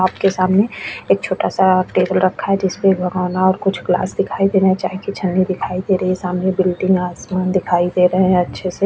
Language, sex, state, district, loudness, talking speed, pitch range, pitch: Hindi, female, Goa, North and South Goa, -17 LUFS, 230 wpm, 185-190 Hz, 185 Hz